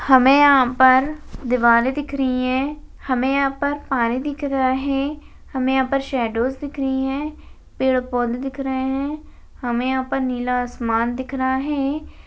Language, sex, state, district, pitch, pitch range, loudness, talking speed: Hindi, female, Rajasthan, Churu, 265 Hz, 255-275 Hz, -20 LUFS, 165 wpm